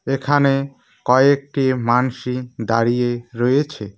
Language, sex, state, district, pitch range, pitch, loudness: Bengali, male, West Bengal, Cooch Behar, 120-135 Hz, 125 Hz, -18 LUFS